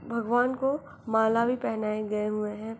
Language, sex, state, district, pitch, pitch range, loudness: Hindi, female, Bihar, Begusarai, 225 Hz, 215-245 Hz, -28 LUFS